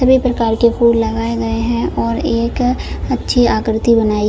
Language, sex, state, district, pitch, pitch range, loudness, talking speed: Hindi, female, Jharkhand, Jamtara, 230 Hz, 225-235 Hz, -15 LUFS, 170 wpm